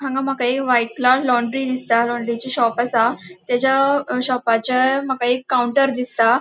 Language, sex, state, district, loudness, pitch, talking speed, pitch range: Konkani, female, Goa, North and South Goa, -18 LUFS, 250 Hz, 140 wpm, 235-265 Hz